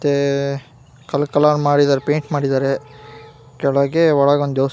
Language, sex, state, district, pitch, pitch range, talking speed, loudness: Kannada, female, Karnataka, Gulbarga, 145 Hz, 140-145 Hz, 140 wpm, -17 LUFS